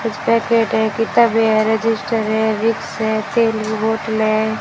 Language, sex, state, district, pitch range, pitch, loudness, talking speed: Hindi, female, Rajasthan, Jaisalmer, 220-225 Hz, 220 Hz, -17 LUFS, 170 wpm